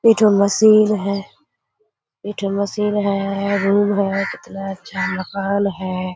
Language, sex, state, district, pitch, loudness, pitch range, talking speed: Hindi, female, Bihar, Kishanganj, 200 Hz, -18 LUFS, 195-205 Hz, 95 wpm